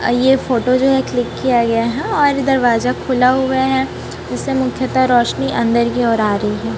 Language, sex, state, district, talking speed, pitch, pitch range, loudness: Hindi, female, Chhattisgarh, Raipur, 195 wpm, 250 Hz, 235-265 Hz, -15 LUFS